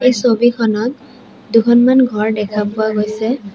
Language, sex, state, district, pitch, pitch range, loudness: Assamese, female, Assam, Sonitpur, 230 Hz, 215-250 Hz, -14 LUFS